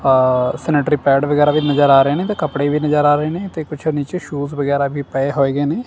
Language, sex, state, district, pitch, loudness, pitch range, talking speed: Punjabi, male, Punjab, Kapurthala, 145 Hz, -16 LUFS, 140-150 Hz, 265 wpm